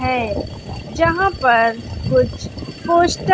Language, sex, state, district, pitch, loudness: Hindi, female, Bihar, West Champaran, 230 Hz, -17 LUFS